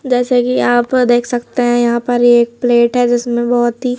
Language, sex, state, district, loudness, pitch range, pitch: Hindi, male, Madhya Pradesh, Bhopal, -13 LUFS, 240-245 Hz, 240 Hz